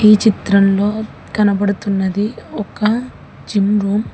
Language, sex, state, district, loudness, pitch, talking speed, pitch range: Telugu, female, Telangana, Hyderabad, -16 LUFS, 205 Hz, 100 wpm, 200-215 Hz